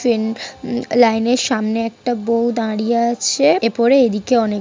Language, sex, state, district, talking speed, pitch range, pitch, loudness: Bengali, female, West Bengal, Paschim Medinipur, 170 wpm, 225-245 Hz, 235 Hz, -17 LUFS